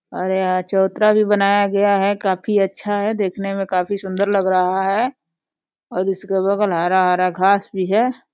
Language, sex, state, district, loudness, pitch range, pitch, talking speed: Hindi, female, Uttar Pradesh, Deoria, -18 LUFS, 185-205 Hz, 195 Hz, 180 wpm